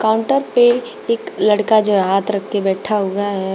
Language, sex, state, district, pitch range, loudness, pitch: Hindi, female, Uttar Pradesh, Shamli, 200-240 Hz, -16 LUFS, 210 Hz